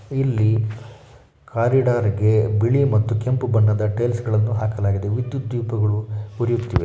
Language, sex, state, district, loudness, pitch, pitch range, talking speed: Kannada, male, Karnataka, Shimoga, -20 LUFS, 110 Hz, 110-120 Hz, 115 wpm